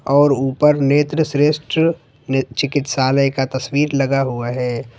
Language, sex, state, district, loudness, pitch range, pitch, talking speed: Hindi, male, Jharkhand, Ranchi, -17 LUFS, 130-145 Hz, 140 Hz, 120 wpm